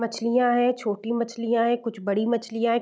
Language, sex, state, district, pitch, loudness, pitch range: Hindi, female, Bihar, Gopalganj, 235 Hz, -24 LUFS, 230-235 Hz